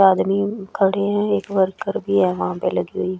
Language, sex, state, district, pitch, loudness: Hindi, female, Chhattisgarh, Raipur, 195 Hz, -20 LUFS